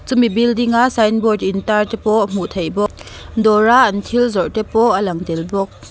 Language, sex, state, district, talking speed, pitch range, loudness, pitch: Mizo, female, Mizoram, Aizawl, 205 wpm, 200-235 Hz, -16 LUFS, 220 Hz